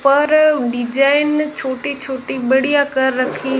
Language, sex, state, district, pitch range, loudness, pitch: Hindi, female, Rajasthan, Jaisalmer, 265-290 Hz, -16 LUFS, 270 Hz